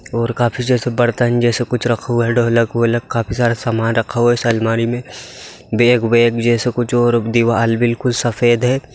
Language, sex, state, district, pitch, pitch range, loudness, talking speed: Hindi, male, Bihar, Saharsa, 120 Hz, 115-120 Hz, -16 LUFS, 195 wpm